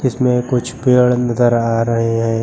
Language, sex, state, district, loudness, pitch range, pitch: Hindi, male, Uttar Pradesh, Lucknow, -15 LUFS, 115-125 Hz, 120 Hz